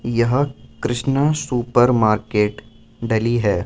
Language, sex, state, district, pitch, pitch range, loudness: Hindi, male, Delhi, New Delhi, 120 Hz, 110-125 Hz, -19 LUFS